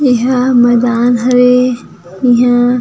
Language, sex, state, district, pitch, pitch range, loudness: Chhattisgarhi, female, Chhattisgarh, Jashpur, 245 Hz, 245-250 Hz, -10 LUFS